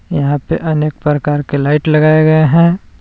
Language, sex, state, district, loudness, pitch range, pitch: Hindi, male, Jharkhand, Palamu, -12 LUFS, 145-155 Hz, 155 Hz